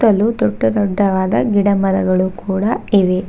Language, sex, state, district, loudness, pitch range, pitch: Kannada, female, Karnataka, Bangalore, -16 LUFS, 185-205 Hz, 195 Hz